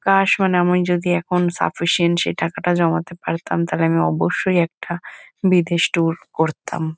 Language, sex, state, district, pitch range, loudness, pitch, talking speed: Bengali, female, West Bengal, Kolkata, 160-180 Hz, -19 LUFS, 170 Hz, 135 wpm